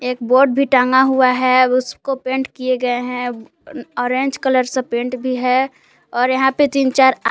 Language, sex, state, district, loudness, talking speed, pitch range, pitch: Hindi, female, Jharkhand, Palamu, -16 LUFS, 190 wpm, 250-265 Hz, 255 Hz